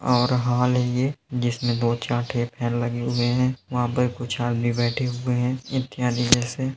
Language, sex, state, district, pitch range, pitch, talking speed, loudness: Hindi, male, Uttar Pradesh, Hamirpur, 120-125 Hz, 125 Hz, 170 wpm, -23 LUFS